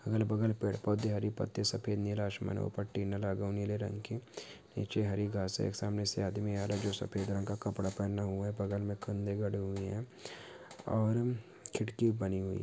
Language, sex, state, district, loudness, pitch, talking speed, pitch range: Hindi, male, Bihar, Saharsa, -36 LUFS, 100 Hz, 205 wpm, 100-110 Hz